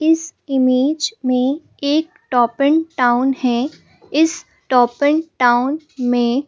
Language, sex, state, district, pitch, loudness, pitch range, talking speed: Hindi, female, Madhya Pradesh, Bhopal, 270 Hz, -17 LUFS, 250-310 Hz, 120 wpm